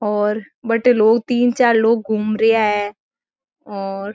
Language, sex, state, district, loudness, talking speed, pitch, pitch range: Marwari, female, Rajasthan, Nagaur, -17 LUFS, 130 wpm, 220 Hz, 210-235 Hz